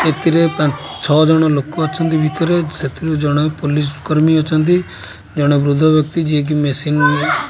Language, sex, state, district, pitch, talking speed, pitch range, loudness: Odia, male, Odisha, Khordha, 155 Hz, 150 wpm, 150-160 Hz, -15 LUFS